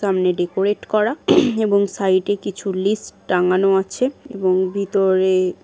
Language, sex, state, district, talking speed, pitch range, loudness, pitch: Bengali, female, West Bengal, Kolkata, 115 wpm, 185-205 Hz, -19 LUFS, 195 Hz